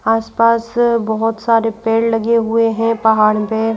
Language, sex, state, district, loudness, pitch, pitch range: Hindi, female, Madhya Pradesh, Bhopal, -15 LUFS, 225 Hz, 220-230 Hz